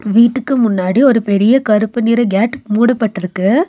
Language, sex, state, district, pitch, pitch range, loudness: Tamil, female, Tamil Nadu, Nilgiris, 230 Hz, 205-250 Hz, -13 LUFS